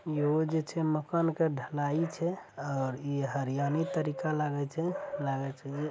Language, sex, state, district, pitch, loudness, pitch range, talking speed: Angika, male, Bihar, Araria, 150 Hz, -32 LUFS, 140-160 Hz, 175 wpm